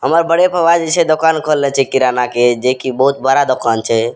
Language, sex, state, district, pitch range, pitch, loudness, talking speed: Maithili, male, Bihar, Madhepura, 125-160 Hz, 135 Hz, -13 LUFS, 245 wpm